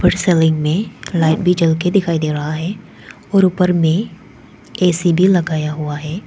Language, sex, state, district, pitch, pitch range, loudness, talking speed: Hindi, female, Arunachal Pradesh, Papum Pare, 170 Hz, 160-185 Hz, -16 LUFS, 170 wpm